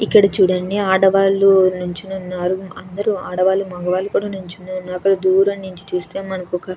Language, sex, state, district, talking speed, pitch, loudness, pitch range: Telugu, female, Andhra Pradesh, Krishna, 135 wpm, 190 Hz, -18 LUFS, 180-195 Hz